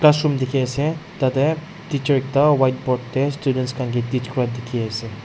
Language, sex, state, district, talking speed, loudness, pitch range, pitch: Nagamese, male, Nagaland, Dimapur, 170 wpm, -21 LUFS, 125-145 Hz, 135 Hz